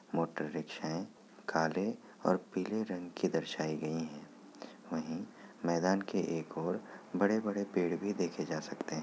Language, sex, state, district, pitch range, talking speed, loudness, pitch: Hindi, male, Bihar, Kishanganj, 80-100 Hz, 155 wpm, -36 LUFS, 90 Hz